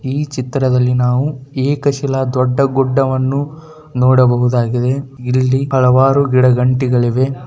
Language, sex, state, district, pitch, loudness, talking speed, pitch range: Kannada, male, Karnataka, Bijapur, 130 Hz, -14 LUFS, 105 wpm, 125-135 Hz